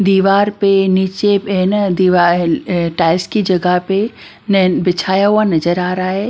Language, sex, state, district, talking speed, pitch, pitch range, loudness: Hindi, female, Bihar, Patna, 145 wpm, 190 Hz, 180-200 Hz, -14 LUFS